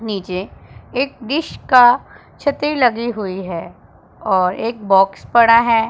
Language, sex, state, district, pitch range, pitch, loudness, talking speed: Hindi, female, Punjab, Pathankot, 195-245 Hz, 230 Hz, -16 LUFS, 130 wpm